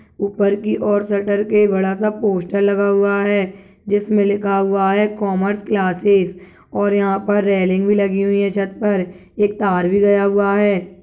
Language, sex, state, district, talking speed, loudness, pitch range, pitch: Hindi, male, Chhattisgarh, Kabirdham, 180 wpm, -17 LUFS, 195-205 Hz, 200 Hz